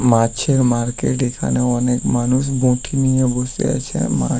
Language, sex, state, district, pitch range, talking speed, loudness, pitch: Bengali, male, West Bengal, Paschim Medinipur, 120-130 Hz, 135 wpm, -18 LUFS, 125 Hz